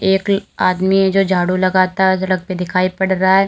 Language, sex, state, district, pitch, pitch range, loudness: Hindi, female, Uttar Pradesh, Lalitpur, 190 Hz, 185-190 Hz, -16 LUFS